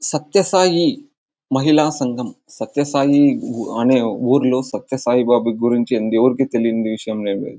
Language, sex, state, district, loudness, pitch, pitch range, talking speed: Telugu, male, Andhra Pradesh, Anantapur, -17 LUFS, 130 Hz, 115-145 Hz, 125 wpm